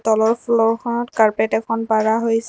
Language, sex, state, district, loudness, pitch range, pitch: Assamese, female, Assam, Kamrup Metropolitan, -18 LUFS, 220-230 Hz, 225 Hz